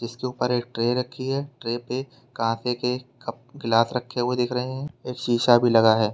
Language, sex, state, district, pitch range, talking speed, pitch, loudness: Hindi, male, Uttar Pradesh, Lalitpur, 120-125 Hz, 215 wpm, 125 Hz, -24 LUFS